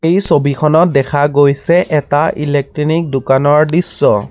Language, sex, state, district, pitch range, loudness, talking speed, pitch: Assamese, male, Assam, Sonitpur, 140-160 Hz, -12 LUFS, 110 wpm, 150 Hz